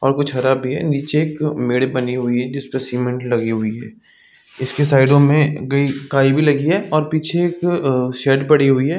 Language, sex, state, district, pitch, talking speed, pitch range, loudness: Hindi, male, Chhattisgarh, Raigarh, 135 Hz, 200 wpm, 130-150 Hz, -17 LUFS